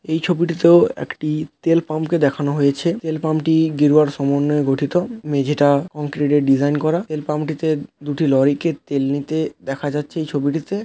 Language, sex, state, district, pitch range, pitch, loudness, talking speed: Bengali, male, West Bengal, Paschim Medinipur, 145-160 Hz, 150 Hz, -19 LUFS, 150 wpm